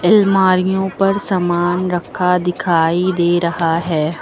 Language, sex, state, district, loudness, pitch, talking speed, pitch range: Hindi, female, Uttar Pradesh, Lucknow, -16 LUFS, 180 Hz, 115 wpm, 170-190 Hz